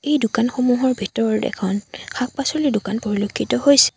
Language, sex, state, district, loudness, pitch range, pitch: Assamese, female, Assam, Sonitpur, -20 LUFS, 210-270 Hz, 240 Hz